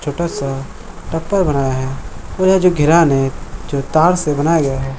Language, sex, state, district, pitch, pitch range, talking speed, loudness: Hindi, male, Jharkhand, Jamtara, 150 Hz, 135-170 Hz, 190 wpm, -16 LUFS